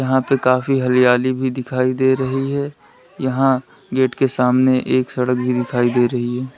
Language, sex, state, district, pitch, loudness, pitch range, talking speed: Hindi, male, Uttar Pradesh, Lalitpur, 130 Hz, -18 LUFS, 125-130 Hz, 180 wpm